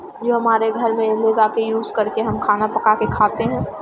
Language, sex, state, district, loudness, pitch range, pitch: Hindi, female, Bihar, Jamui, -18 LUFS, 215-230 Hz, 225 Hz